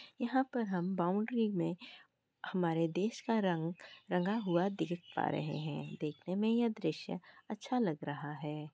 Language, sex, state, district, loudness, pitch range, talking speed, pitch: Hindi, female, Bihar, Kishanganj, -36 LUFS, 165-220 Hz, 160 wpm, 185 Hz